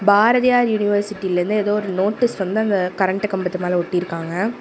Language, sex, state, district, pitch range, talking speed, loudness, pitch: Tamil, female, Tamil Nadu, Namakkal, 185-215 Hz, 155 wpm, -19 LUFS, 205 Hz